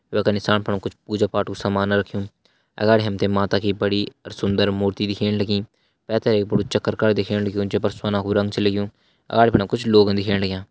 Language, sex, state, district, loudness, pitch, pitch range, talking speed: Hindi, male, Uttarakhand, Uttarkashi, -21 LUFS, 100 Hz, 100-105 Hz, 200 wpm